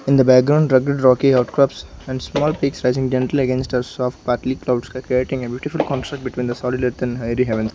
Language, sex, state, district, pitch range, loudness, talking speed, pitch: English, male, Arunachal Pradesh, Lower Dibang Valley, 125-135 Hz, -19 LUFS, 210 wpm, 130 Hz